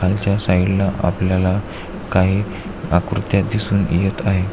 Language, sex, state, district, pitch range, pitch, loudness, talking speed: Marathi, male, Maharashtra, Aurangabad, 90-100 Hz, 95 Hz, -19 LUFS, 120 wpm